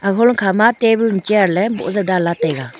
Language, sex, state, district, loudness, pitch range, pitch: Wancho, female, Arunachal Pradesh, Longding, -15 LUFS, 185-225 Hz, 205 Hz